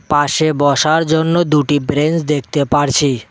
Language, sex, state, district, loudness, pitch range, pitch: Bengali, male, West Bengal, Cooch Behar, -14 LUFS, 145-155 Hz, 150 Hz